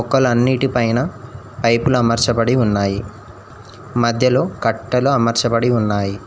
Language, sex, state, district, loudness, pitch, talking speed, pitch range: Telugu, male, Telangana, Mahabubabad, -17 LUFS, 115 Hz, 85 wpm, 115-125 Hz